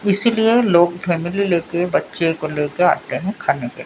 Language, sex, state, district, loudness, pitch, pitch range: Hindi, female, Odisha, Sambalpur, -18 LUFS, 175 Hz, 170-200 Hz